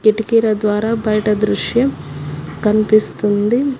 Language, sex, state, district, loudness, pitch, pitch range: Telugu, female, Telangana, Hyderabad, -16 LUFS, 215 Hz, 210-225 Hz